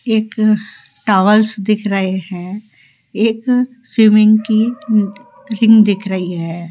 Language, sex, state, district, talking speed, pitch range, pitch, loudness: Hindi, female, Rajasthan, Jaipur, 105 wpm, 190-220 Hz, 215 Hz, -14 LUFS